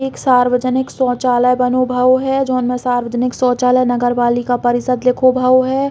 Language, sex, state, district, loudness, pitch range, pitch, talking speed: Bundeli, female, Uttar Pradesh, Hamirpur, -15 LUFS, 245-255 Hz, 250 Hz, 160 wpm